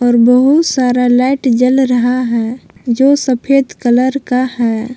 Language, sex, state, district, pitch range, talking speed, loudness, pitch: Hindi, female, Jharkhand, Palamu, 245-265 Hz, 145 wpm, -12 LUFS, 250 Hz